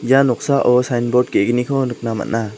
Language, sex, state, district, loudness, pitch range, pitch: Garo, male, Meghalaya, South Garo Hills, -17 LUFS, 115-130 Hz, 125 Hz